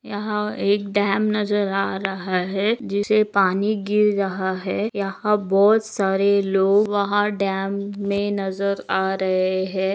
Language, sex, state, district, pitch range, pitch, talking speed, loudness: Hindi, female, Maharashtra, Nagpur, 195-205 Hz, 200 Hz, 140 wpm, -21 LUFS